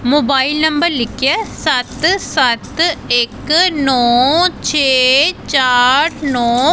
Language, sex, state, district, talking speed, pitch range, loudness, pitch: Punjabi, female, Punjab, Pathankot, 90 wpm, 255-310 Hz, -13 LUFS, 275 Hz